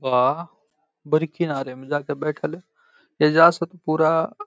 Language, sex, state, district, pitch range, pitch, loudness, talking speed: Hindi, male, Bihar, Lakhisarai, 145-170 Hz, 155 Hz, -21 LUFS, 135 wpm